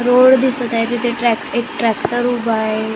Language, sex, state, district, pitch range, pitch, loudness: Marathi, female, Maharashtra, Gondia, 230-245 Hz, 240 Hz, -16 LUFS